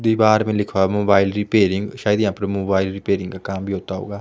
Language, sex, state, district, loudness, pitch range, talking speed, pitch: Hindi, male, Himachal Pradesh, Shimla, -19 LUFS, 95-105 Hz, 215 wpm, 100 Hz